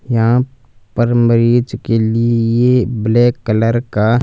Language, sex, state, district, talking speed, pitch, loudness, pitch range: Hindi, male, Punjab, Fazilka, 115 wpm, 120 Hz, -14 LUFS, 115-120 Hz